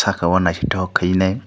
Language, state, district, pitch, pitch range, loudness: Kokborok, Tripura, Dhalai, 95 Hz, 85-95 Hz, -18 LUFS